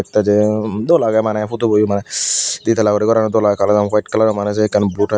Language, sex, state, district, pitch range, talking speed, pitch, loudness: Chakma, male, Tripura, Dhalai, 105-110 Hz, 230 wpm, 105 Hz, -15 LUFS